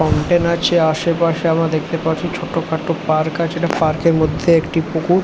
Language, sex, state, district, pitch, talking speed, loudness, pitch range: Bengali, male, West Bengal, Jhargram, 165 Hz, 170 wpm, -17 LUFS, 160-170 Hz